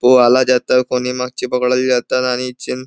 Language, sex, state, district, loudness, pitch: Marathi, male, Maharashtra, Nagpur, -15 LUFS, 125 Hz